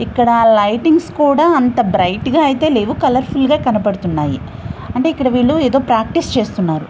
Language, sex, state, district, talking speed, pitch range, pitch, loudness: Telugu, female, Andhra Pradesh, Visakhapatnam, 150 wpm, 205-285 Hz, 245 Hz, -14 LUFS